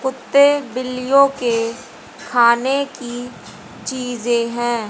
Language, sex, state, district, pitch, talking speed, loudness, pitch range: Hindi, female, Haryana, Charkhi Dadri, 250 Hz, 85 wpm, -18 LUFS, 235-265 Hz